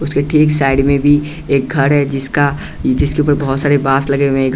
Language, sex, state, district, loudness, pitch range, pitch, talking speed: Hindi, male, Bihar, West Champaran, -14 LUFS, 135-145 Hz, 140 Hz, 225 wpm